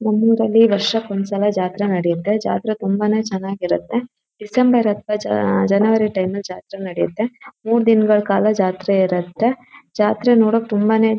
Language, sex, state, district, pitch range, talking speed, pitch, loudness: Kannada, female, Karnataka, Shimoga, 195-225 Hz, 135 wpm, 210 Hz, -18 LUFS